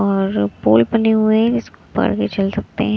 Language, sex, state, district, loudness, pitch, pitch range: Hindi, female, Punjab, Kapurthala, -17 LUFS, 210 Hz, 195-220 Hz